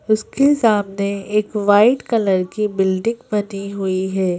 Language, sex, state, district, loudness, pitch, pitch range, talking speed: Hindi, female, Madhya Pradesh, Bhopal, -18 LUFS, 205 Hz, 195-220 Hz, 135 wpm